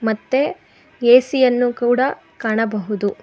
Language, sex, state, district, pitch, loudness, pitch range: Kannada, female, Karnataka, Bangalore, 240 Hz, -18 LUFS, 220-260 Hz